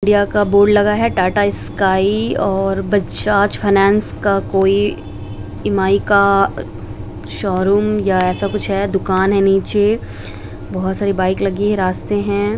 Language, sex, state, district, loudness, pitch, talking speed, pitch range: Hindi, male, Bihar, Muzaffarpur, -15 LUFS, 195 Hz, 140 wpm, 185-205 Hz